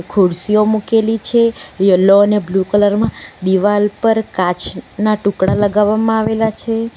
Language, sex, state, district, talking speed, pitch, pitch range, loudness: Gujarati, female, Gujarat, Valsad, 130 wpm, 210 Hz, 195-220 Hz, -14 LUFS